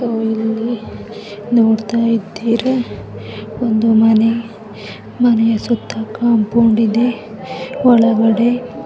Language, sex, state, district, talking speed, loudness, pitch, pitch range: Kannada, female, Karnataka, Bellary, 70 wpm, -15 LUFS, 225 Hz, 220-235 Hz